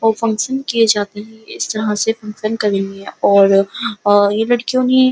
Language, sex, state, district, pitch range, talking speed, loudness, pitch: Hindi, female, Uttar Pradesh, Muzaffarnagar, 205-230 Hz, 200 wpm, -16 LUFS, 220 Hz